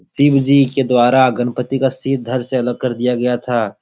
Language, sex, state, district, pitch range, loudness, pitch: Hindi, male, Bihar, Supaul, 120-135 Hz, -16 LUFS, 125 Hz